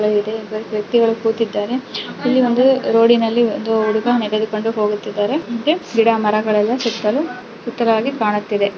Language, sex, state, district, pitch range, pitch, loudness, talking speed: Kannada, female, Karnataka, Raichur, 215-240 Hz, 225 Hz, -17 LUFS, 115 wpm